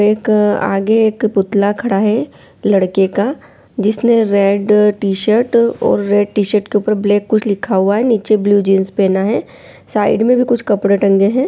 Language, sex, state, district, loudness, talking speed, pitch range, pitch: Hindi, female, Bihar, Saran, -14 LUFS, 170 wpm, 200-220 Hz, 210 Hz